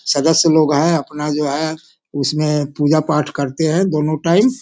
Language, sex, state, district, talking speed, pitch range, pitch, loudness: Hindi, male, Bihar, Sitamarhi, 180 wpm, 150-160 Hz, 155 Hz, -16 LUFS